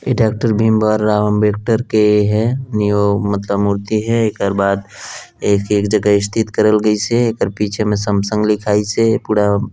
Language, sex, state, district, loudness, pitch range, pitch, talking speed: Hindi, male, Chhattisgarh, Balrampur, -15 LUFS, 100-110 Hz, 105 Hz, 165 wpm